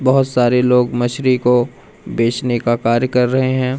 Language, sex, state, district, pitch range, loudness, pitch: Hindi, male, Madhya Pradesh, Umaria, 120-130 Hz, -16 LUFS, 125 Hz